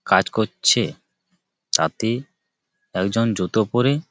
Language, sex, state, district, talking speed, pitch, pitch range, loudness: Bengali, male, West Bengal, Malda, 100 wpm, 115 Hz, 105-120 Hz, -21 LUFS